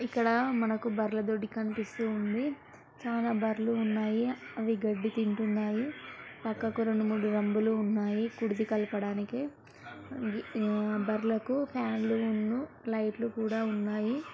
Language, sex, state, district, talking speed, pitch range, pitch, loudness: Telugu, female, Telangana, Karimnagar, 105 wpm, 215-230 Hz, 220 Hz, -32 LUFS